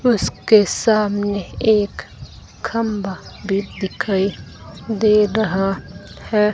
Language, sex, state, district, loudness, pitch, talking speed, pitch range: Hindi, female, Rajasthan, Bikaner, -19 LUFS, 210 Hz, 80 wpm, 195-220 Hz